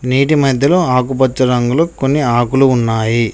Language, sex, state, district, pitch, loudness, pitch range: Telugu, male, Telangana, Mahabubabad, 130 Hz, -13 LUFS, 120-140 Hz